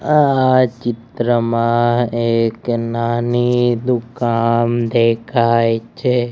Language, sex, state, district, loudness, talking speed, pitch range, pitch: Gujarati, male, Gujarat, Gandhinagar, -16 LUFS, 65 wpm, 115-120 Hz, 120 Hz